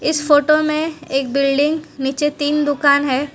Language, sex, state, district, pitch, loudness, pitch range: Hindi, female, Gujarat, Valsad, 290 Hz, -17 LUFS, 275-305 Hz